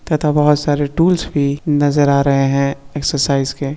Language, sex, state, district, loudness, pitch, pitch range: Hindi, male, Bihar, Begusarai, -15 LUFS, 145 Hz, 140-150 Hz